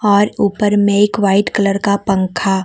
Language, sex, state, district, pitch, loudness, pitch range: Hindi, female, Jharkhand, Deoghar, 200 Hz, -14 LUFS, 195-205 Hz